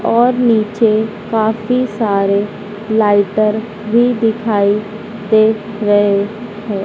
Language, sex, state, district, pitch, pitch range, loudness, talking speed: Hindi, female, Madhya Pradesh, Dhar, 215 Hz, 210-225 Hz, -14 LUFS, 90 wpm